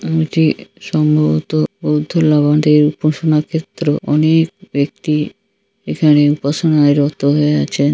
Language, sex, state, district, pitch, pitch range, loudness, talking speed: Bengali, male, West Bengal, Jhargram, 150 Hz, 145-155 Hz, -14 LUFS, 100 wpm